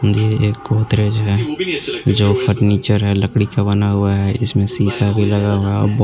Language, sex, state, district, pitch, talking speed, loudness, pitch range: Hindi, male, Jharkhand, Garhwa, 105 Hz, 210 wpm, -16 LUFS, 100-110 Hz